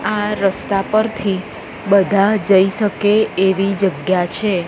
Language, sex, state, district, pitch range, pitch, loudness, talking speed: Gujarati, female, Gujarat, Gandhinagar, 190-210 Hz, 195 Hz, -16 LUFS, 115 wpm